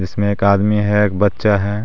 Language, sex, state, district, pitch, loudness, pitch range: Hindi, male, Jharkhand, Garhwa, 105 Hz, -16 LUFS, 100-105 Hz